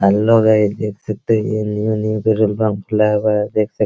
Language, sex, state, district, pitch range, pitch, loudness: Hindi, male, Bihar, Araria, 105-110 Hz, 110 Hz, -16 LUFS